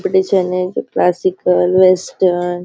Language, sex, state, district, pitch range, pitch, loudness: Hindi, female, Maharashtra, Nagpur, 180-185 Hz, 180 Hz, -14 LUFS